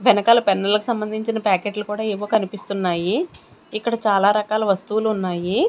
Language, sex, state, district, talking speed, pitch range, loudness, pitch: Telugu, female, Andhra Pradesh, Sri Satya Sai, 135 wpm, 200-220 Hz, -20 LUFS, 210 Hz